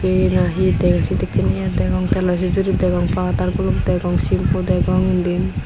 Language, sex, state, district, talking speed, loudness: Chakma, female, Tripura, Unakoti, 150 wpm, -18 LUFS